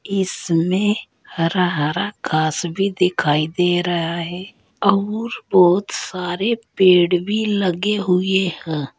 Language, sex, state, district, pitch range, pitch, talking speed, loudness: Hindi, female, Uttar Pradesh, Saharanpur, 170-200 Hz, 180 Hz, 115 wpm, -19 LUFS